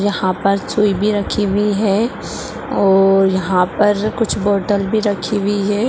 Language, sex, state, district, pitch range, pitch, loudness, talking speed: Hindi, female, Bihar, Purnia, 195-210 Hz, 205 Hz, -16 LUFS, 165 wpm